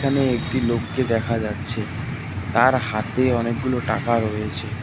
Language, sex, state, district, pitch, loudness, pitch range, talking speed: Bengali, male, West Bengal, Cooch Behar, 115 Hz, -22 LUFS, 110-130 Hz, 125 wpm